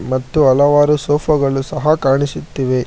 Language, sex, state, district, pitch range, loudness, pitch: Kannada, male, Karnataka, Bangalore, 135-150 Hz, -15 LUFS, 140 Hz